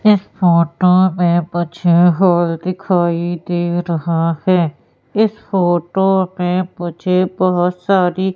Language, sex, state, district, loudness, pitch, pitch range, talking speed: Hindi, female, Madhya Pradesh, Katni, -15 LUFS, 180 Hz, 175-185 Hz, 110 wpm